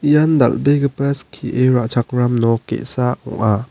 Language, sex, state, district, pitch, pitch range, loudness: Garo, male, Meghalaya, West Garo Hills, 125 Hz, 120-140 Hz, -17 LUFS